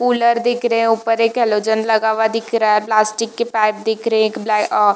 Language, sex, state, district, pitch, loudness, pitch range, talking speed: Hindi, female, Jharkhand, Jamtara, 220 Hz, -16 LUFS, 215-230 Hz, 215 wpm